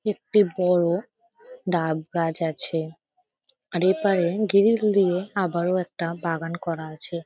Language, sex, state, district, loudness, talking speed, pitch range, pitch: Bengali, female, West Bengal, Kolkata, -24 LUFS, 140 wpm, 170-210 Hz, 180 Hz